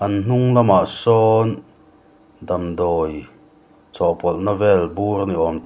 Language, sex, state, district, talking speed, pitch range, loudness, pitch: Mizo, male, Mizoram, Aizawl, 105 wpm, 85-110 Hz, -18 LUFS, 100 Hz